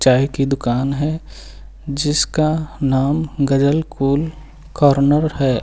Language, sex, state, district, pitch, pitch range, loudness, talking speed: Hindi, male, Uttar Pradesh, Lucknow, 145 Hz, 135-155 Hz, -18 LUFS, 105 wpm